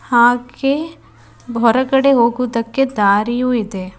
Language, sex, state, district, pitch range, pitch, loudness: Kannada, female, Karnataka, Bidar, 230-270 Hz, 240 Hz, -15 LUFS